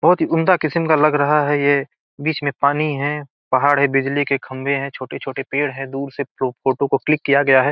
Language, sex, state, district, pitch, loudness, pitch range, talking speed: Hindi, male, Bihar, Gopalganj, 140 Hz, -18 LUFS, 135-150 Hz, 240 wpm